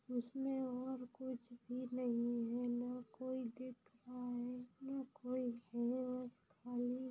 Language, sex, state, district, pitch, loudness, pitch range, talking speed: Hindi, female, Bihar, Sitamarhi, 250 Hz, -44 LUFS, 245-255 Hz, 135 wpm